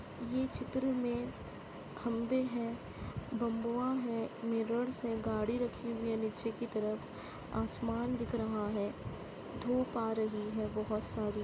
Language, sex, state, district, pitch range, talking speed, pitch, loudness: Hindi, female, Uttarakhand, Uttarkashi, 220-245 Hz, 135 wpm, 230 Hz, -37 LUFS